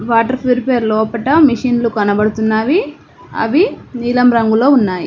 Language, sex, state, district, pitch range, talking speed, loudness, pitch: Telugu, female, Telangana, Mahabubabad, 220-255 Hz, 105 wpm, -14 LUFS, 235 Hz